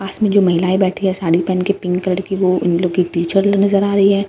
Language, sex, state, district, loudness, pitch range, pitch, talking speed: Hindi, female, Bihar, Katihar, -16 LUFS, 180-200 Hz, 190 Hz, 295 wpm